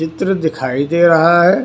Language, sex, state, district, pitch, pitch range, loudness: Hindi, male, Karnataka, Bangalore, 165 Hz, 160-175 Hz, -13 LUFS